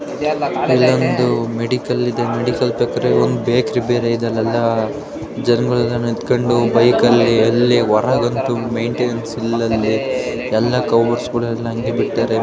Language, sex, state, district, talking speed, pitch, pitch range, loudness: Kannada, female, Karnataka, Gulbarga, 105 wpm, 115 Hz, 115-120 Hz, -17 LUFS